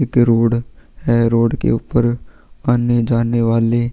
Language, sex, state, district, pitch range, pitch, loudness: Hindi, male, Chhattisgarh, Sukma, 115-120 Hz, 120 Hz, -16 LUFS